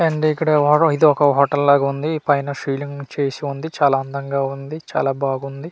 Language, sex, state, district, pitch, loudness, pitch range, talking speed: Telugu, male, Andhra Pradesh, Manyam, 140 Hz, -19 LUFS, 140-155 Hz, 155 wpm